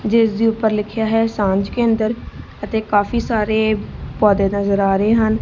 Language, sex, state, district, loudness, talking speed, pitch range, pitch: Punjabi, female, Punjab, Kapurthala, -17 LUFS, 175 wpm, 205-225 Hz, 220 Hz